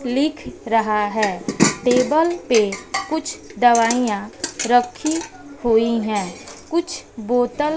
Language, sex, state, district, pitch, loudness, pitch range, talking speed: Hindi, female, Bihar, West Champaran, 245 Hz, -19 LUFS, 225-305 Hz, 100 wpm